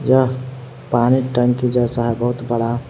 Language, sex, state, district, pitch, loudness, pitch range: Hindi, male, Jharkhand, Palamu, 125 Hz, -18 LUFS, 120-130 Hz